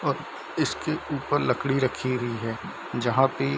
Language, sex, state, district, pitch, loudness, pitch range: Hindi, male, Bihar, Darbhanga, 125 Hz, -27 LUFS, 120-135 Hz